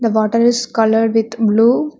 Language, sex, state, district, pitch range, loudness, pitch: English, female, Telangana, Hyderabad, 220-240 Hz, -14 LUFS, 225 Hz